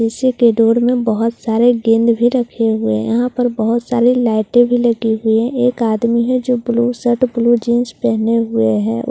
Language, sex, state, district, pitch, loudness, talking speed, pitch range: Hindi, female, Bihar, Katihar, 235 Hz, -15 LUFS, 225 wpm, 225-245 Hz